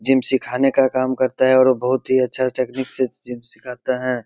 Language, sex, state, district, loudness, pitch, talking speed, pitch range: Hindi, male, Bihar, Begusarai, -18 LUFS, 130 Hz, 210 wpm, 125-130 Hz